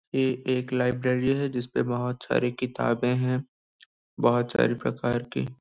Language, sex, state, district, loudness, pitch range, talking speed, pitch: Hindi, male, Chhattisgarh, Sarguja, -27 LUFS, 120-130 Hz, 140 wpm, 125 Hz